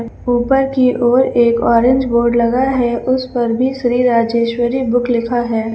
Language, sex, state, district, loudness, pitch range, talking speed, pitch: Hindi, female, Uttar Pradesh, Lucknow, -14 LUFS, 235-255 Hz, 165 wpm, 245 Hz